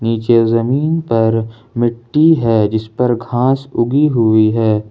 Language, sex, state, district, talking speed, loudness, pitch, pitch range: Hindi, male, Jharkhand, Ranchi, 135 wpm, -14 LUFS, 115 Hz, 115-125 Hz